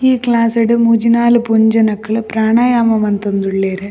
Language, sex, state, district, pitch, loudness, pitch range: Tulu, female, Karnataka, Dakshina Kannada, 225 Hz, -13 LUFS, 215-235 Hz